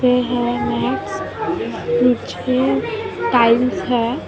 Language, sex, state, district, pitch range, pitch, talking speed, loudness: Hindi, female, Maharashtra, Mumbai Suburban, 240-255 Hz, 245 Hz, 140 wpm, -18 LUFS